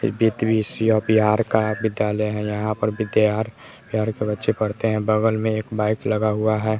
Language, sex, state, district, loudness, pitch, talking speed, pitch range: Hindi, male, Bihar, West Champaran, -21 LUFS, 110 Hz, 170 wpm, 105-110 Hz